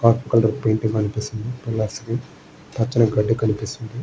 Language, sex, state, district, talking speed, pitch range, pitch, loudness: Telugu, male, Andhra Pradesh, Srikakulam, 120 wpm, 110-115 Hz, 115 Hz, -22 LUFS